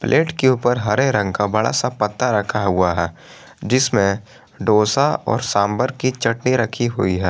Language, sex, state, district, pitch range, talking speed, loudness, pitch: Hindi, male, Jharkhand, Garhwa, 105-130 Hz, 170 wpm, -18 LUFS, 115 Hz